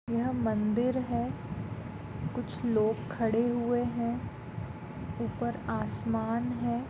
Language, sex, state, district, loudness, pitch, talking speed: Hindi, female, Goa, North and South Goa, -32 LUFS, 225 Hz, 85 wpm